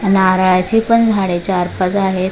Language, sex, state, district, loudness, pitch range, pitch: Marathi, female, Maharashtra, Mumbai Suburban, -14 LUFS, 185-200 Hz, 190 Hz